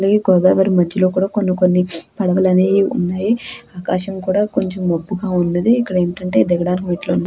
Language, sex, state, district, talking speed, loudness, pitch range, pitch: Telugu, female, Andhra Pradesh, Krishna, 150 wpm, -16 LUFS, 180-195 Hz, 185 Hz